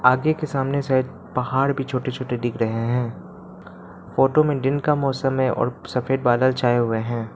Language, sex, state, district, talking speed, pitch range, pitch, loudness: Hindi, male, Arunachal Pradesh, Lower Dibang Valley, 190 wpm, 120-135 Hz, 130 Hz, -22 LUFS